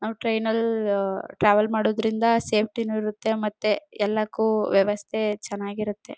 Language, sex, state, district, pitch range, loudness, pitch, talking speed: Kannada, female, Karnataka, Chamarajanagar, 210-220 Hz, -24 LUFS, 215 Hz, 115 wpm